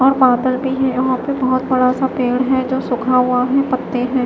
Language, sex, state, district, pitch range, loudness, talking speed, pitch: Hindi, female, Maharashtra, Mumbai Suburban, 250-265 Hz, -16 LUFS, 265 wpm, 255 Hz